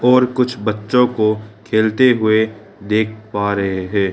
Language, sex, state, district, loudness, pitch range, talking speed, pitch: Hindi, male, Arunachal Pradesh, Lower Dibang Valley, -17 LUFS, 105-120 Hz, 145 wpm, 110 Hz